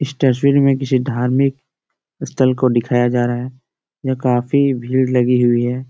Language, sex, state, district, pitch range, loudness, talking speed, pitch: Hindi, male, Jharkhand, Jamtara, 125-135 Hz, -16 LUFS, 175 wpm, 130 Hz